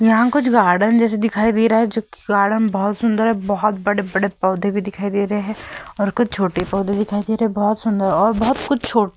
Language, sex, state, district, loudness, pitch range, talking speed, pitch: Hindi, female, Uttar Pradesh, Hamirpur, -18 LUFS, 200-225 Hz, 235 wpm, 210 Hz